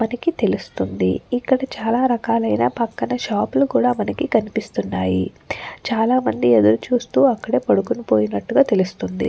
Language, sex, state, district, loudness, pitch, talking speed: Telugu, female, Andhra Pradesh, Chittoor, -19 LUFS, 225 Hz, 130 wpm